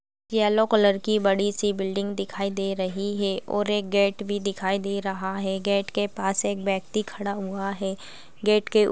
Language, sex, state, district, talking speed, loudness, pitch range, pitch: Hindi, female, Chhattisgarh, Balrampur, 180 wpm, -25 LUFS, 195-205 Hz, 200 Hz